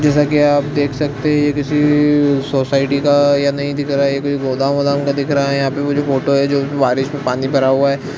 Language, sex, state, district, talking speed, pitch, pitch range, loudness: Hindi, male, Chhattisgarh, Bilaspur, 240 wpm, 140 Hz, 140-145 Hz, -15 LUFS